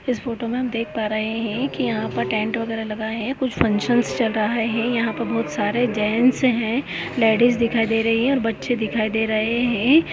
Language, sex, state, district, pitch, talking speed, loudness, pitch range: Hindi, female, Goa, North and South Goa, 230 Hz, 215 wpm, -21 LUFS, 220-240 Hz